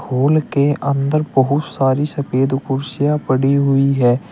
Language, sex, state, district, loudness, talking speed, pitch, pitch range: Hindi, male, Uttar Pradesh, Shamli, -17 LUFS, 140 wpm, 140 Hz, 135-145 Hz